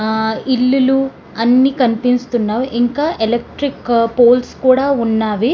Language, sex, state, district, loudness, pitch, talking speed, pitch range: Telugu, female, Andhra Pradesh, Srikakulam, -15 LUFS, 245 Hz, 95 wpm, 230-260 Hz